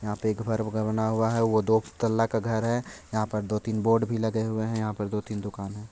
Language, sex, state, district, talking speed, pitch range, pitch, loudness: Hindi, male, Bihar, Purnia, 275 wpm, 105-110 Hz, 110 Hz, -27 LUFS